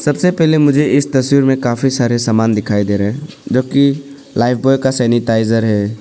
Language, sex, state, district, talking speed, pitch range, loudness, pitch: Hindi, male, Arunachal Pradesh, Papum Pare, 200 wpm, 115-140 Hz, -14 LUFS, 130 Hz